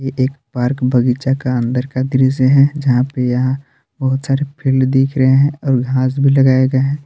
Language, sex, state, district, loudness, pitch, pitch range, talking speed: Hindi, male, Jharkhand, Palamu, -15 LUFS, 130 Hz, 130-135 Hz, 205 wpm